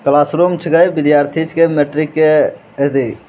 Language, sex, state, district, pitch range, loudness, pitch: Angika, male, Bihar, Bhagalpur, 145-165 Hz, -13 LUFS, 155 Hz